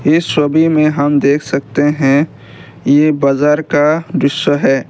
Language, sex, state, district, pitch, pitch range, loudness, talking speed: Hindi, male, Assam, Kamrup Metropolitan, 150 Hz, 140-155 Hz, -13 LUFS, 145 wpm